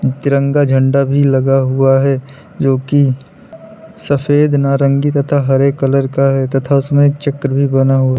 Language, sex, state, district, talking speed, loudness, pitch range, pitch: Hindi, male, Uttar Pradesh, Lalitpur, 155 wpm, -13 LUFS, 135-145 Hz, 140 Hz